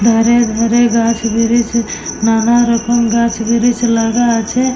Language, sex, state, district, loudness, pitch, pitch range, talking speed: Bengali, female, Jharkhand, Jamtara, -13 LUFS, 230 Hz, 230-240 Hz, 125 wpm